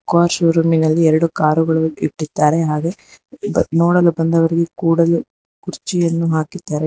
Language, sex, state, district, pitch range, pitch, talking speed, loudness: Kannada, female, Karnataka, Bangalore, 160-170 Hz, 165 Hz, 115 wpm, -16 LUFS